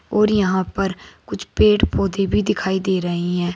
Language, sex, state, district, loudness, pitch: Hindi, female, Uttar Pradesh, Saharanpur, -19 LUFS, 185 Hz